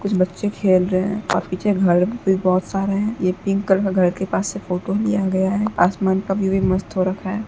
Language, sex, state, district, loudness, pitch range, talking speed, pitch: Hindi, female, Uttar Pradesh, Muzaffarnagar, -20 LUFS, 185-200 Hz, 250 wpm, 190 Hz